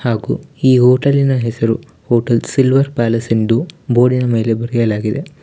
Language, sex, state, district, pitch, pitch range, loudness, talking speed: Kannada, male, Karnataka, Bangalore, 120 Hz, 115-135 Hz, -15 LUFS, 120 wpm